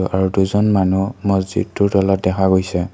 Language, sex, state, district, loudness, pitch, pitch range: Assamese, male, Assam, Kamrup Metropolitan, -17 LUFS, 95 Hz, 95-100 Hz